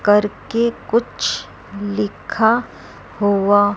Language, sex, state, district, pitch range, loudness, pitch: Hindi, female, Chandigarh, Chandigarh, 205-230 Hz, -19 LUFS, 205 Hz